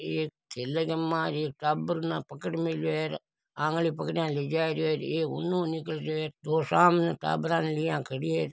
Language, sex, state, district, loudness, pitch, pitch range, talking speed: Marwari, male, Rajasthan, Nagaur, -29 LUFS, 160 Hz, 155-165 Hz, 205 wpm